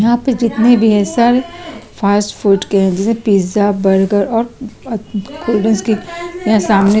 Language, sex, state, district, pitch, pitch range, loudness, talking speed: Hindi, female, Chhattisgarh, Sukma, 220 Hz, 205-235 Hz, -14 LUFS, 155 wpm